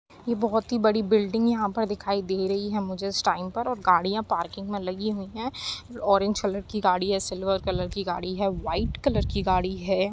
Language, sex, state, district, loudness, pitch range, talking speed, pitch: Hindi, female, Uttar Pradesh, Jyotiba Phule Nagar, -26 LUFS, 190-215 Hz, 220 wpm, 200 Hz